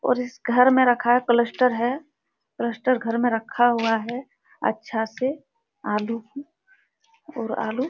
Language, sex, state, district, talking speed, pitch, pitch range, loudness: Hindi, female, Bihar, Supaul, 150 wpm, 245 Hz, 235-275 Hz, -23 LUFS